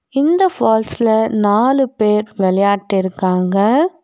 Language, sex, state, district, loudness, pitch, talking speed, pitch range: Tamil, female, Tamil Nadu, Nilgiris, -15 LUFS, 215 Hz, 90 wpm, 200-260 Hz